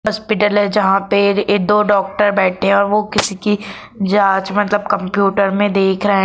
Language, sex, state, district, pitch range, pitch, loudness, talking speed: Hindi, female, Jharkhand, Jamtara, 195-205 Hz, 200 Hz, -15 LUFS, 185 wpm